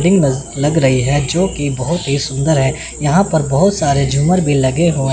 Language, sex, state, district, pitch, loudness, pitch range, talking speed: Hindi, male, Chandigarh, Chandigarh, 145 Hz, -14 LUFS, 135-170 Hz, 200 wpm